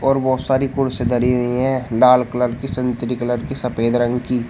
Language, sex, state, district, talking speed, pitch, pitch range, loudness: Hindi, male, Uttar Pradesh, Shamli, 215 wpm, 125 Hz, 120-130 Hz, -18 LUFS